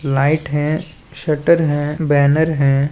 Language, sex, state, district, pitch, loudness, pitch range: Chhattisgarhi, male, Chhattisgarh, Balrampur, 150 Hz, -16 LUFS, 140-155 Hz